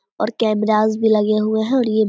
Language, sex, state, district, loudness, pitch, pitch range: Hindi, female, Bihar, Vaishali, -18 LUFS, 220 Hz, 215-225 Hz